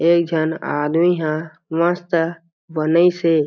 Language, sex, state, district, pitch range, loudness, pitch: Chhattisgarhi, male, Chhattisgarh, Jashpur, 160-170 Hz, -19 LUFS, 165 Hz